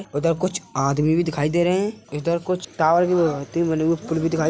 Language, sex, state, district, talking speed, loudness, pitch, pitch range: Hindi, male, Uttar Pradesh, Hamirpur, 215 wpm, -21 LUFS, 165 Hz, 155-180 Hz